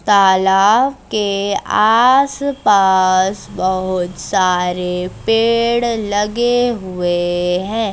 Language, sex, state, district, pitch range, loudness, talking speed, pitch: Hindi, female, Madhya Pradesh, Bhopal, 185-230 Hz, -15 LUFS, 75 wpm, 200 Hz